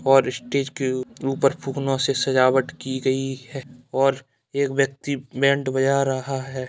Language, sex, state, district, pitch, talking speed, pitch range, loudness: Hindi, male, Bihar, Kishanganj, 135 Hz, 155 wpm, 130-135 Hz, -23 LUFS